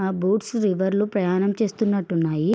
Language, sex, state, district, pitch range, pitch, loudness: Telugu, female, Andhra Pradesh, Srikakulam, 185-210 Hz, 195 Hz, -22 LUFS